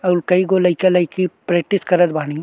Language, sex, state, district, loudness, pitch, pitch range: Bhojpuri, male, Uttar Pradesh, Ghazipur, -17 LUFS, 180 Hz, 175-185 Hz